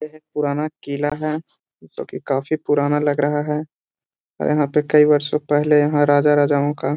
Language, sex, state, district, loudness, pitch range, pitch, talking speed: Hindi, male, Bihar, Jahanabad, -19 LUFS, 145-150 Hz, 150 Hz, 190 wpm